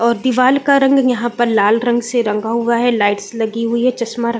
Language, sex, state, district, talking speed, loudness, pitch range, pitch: Hindi, female, Chhattisgarh, Bilaspur, 245 wpm, -15 LUFS, 230-245 Hz, 235 Hz